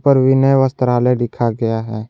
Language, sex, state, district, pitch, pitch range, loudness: Hindi, male, Jharkhand, Garhwa, 125 Hz, 115-135 Hz, -15 LUFS